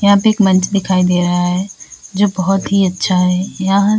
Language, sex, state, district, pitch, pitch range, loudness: Hindi, female, Uttar Pradesh, Lalitpur, 190 Hz, 180-200 Hz, -14 LUFS